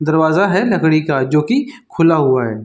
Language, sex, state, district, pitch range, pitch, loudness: Hindi, male, Chhattisgarh, Raigarh, 140-195 Hz, 160 Hz, -14 LUFS